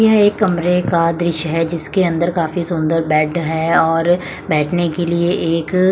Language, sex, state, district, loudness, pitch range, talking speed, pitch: Hindi, female, Chandigarh, Chandigarh, -16 LUFS, 165-175 Hz, 170 wpm, 170 Hz